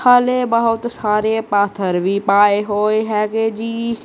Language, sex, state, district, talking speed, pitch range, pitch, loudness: Punjabi, female, Punjab, Kapurthala, 135 wpm, 205-230 Hz, 215 Hz, -17 LUFS